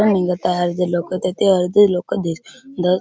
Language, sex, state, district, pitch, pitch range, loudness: Marathi, male, Maharashtra, Chandrapur, 180 Hz, 180-200 Hz, -18 LUFS